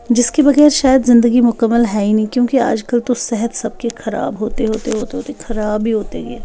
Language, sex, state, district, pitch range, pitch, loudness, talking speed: Hindi, female, Bihar, Patna, 220-245 Hz, 235 Hz, -15 LUFS, 205 wpm